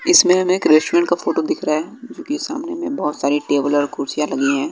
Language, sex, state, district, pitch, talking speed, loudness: Hindi, male, Bihar, West Champaran, 180 Hz, 255 wpm, -18 LUFS